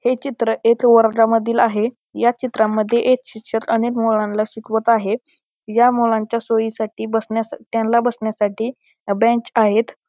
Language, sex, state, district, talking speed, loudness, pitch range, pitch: Marathi, male, Maharashtra, Pune, 125 wpm, -18 LUFS, 220-235 Hz, 225 Hz